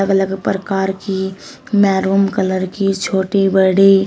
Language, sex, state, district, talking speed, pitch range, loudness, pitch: Hindi, female, Uttar Pradesh, Shamli, 120 wpm, 190-195 Hz, -16 LUFS, 195 Hz